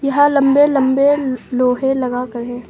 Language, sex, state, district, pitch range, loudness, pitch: Hindi, female, Arunachal Pradesh, Longding, 250-280 Hz, -15 LUFS, 265 Hz